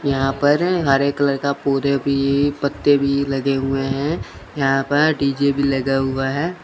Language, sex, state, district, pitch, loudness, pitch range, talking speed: Hindi, male, Chandigarh, Chandigarh, 140 Hz, -19 LUFS, 135-145 Hz, 170 wpm